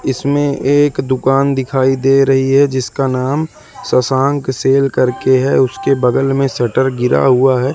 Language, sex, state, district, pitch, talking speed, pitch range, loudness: Hindi, male, Madhya Pradesh, Katni, 135 Hz, 155 wpm, 130-135 Hz, -13 LUFS